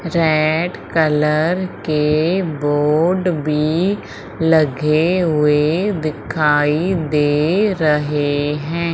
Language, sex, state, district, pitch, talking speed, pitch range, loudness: Hindi, female, Madhya Pradesh, Umaria, 155 Hz, 75 wpm, 150-170 Hz, -17 LUFS